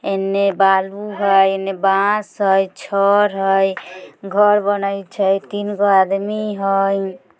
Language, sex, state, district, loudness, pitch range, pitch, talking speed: Bajjika, female, Bihar, Vaishali, -17 LUFS, 195-205 Hz, 195 Hz, 115 wpm